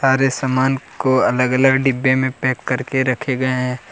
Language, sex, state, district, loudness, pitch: Hindi, male, Jharkhand, Deoghar, -17 LUFS, 130 Hz